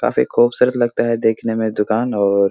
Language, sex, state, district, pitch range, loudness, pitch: Hindi, male, Bihar, Supaul, 105-120 Hz, -17 LUFS, 110 Hz